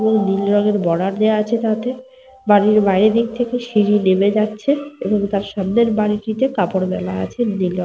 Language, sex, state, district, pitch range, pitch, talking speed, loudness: Bengali, female, Jharkhand, Sahebganj, 195-230 Hz, 210 Hz, 175 wpm, -17 LUFS